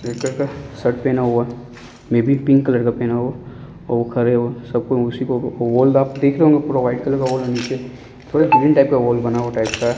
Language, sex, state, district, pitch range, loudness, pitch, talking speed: Hindi, male, Uttar Pradesh, Ghazipur, 120-135 Hz, -18 LUFS, 125 Hz, 265 wpm